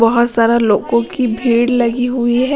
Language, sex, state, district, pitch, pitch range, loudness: Hindi, female, Punjab, Pathankot, 240 Hz, 235-245 Hz, -14 LUFS